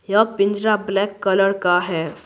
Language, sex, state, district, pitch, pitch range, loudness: Hindi, female, Bihar, Patna, 200 Hz, 185-205 Hz, -19 LUFS